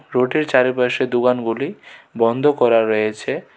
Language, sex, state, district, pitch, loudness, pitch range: Bengali, male, Tripura, West Tripura, 125 Hz, -18 LUFS, 115-125 Hz